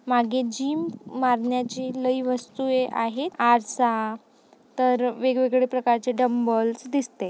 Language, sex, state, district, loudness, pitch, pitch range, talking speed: Marathi, female, Maharashtra, Nagpur, -24 LUFS, 250 Hz, 235-255 Hz, 100 wpm